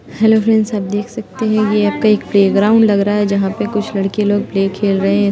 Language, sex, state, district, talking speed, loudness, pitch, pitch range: Hindi, female, Bihar, Muzaffarpur, 250 wpm, -14 LUFS, 205 Hz, 200-215 Hz